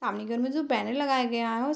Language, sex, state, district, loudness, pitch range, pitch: Hindi, female, Bihar, Darbhanga, -28 LUFS, 230-270 Hz, 250 Hz